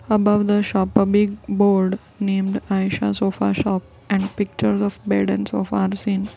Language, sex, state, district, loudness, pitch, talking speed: English, female, Gujarat, Valsad, -20 LUFS, 195 Hz, 170 wpm